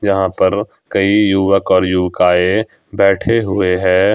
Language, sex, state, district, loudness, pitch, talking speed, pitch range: Hindi, male, Jharkhand, Ranchi, -14 LUFS, 95 Hz, 130 wpm, 90-100 Hz